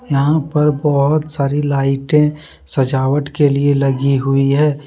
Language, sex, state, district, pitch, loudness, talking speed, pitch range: Hindi, male, Jharkhand, Deoghar, 140 Hz, -15 LUFS, 135 wpm, 135-150 Hz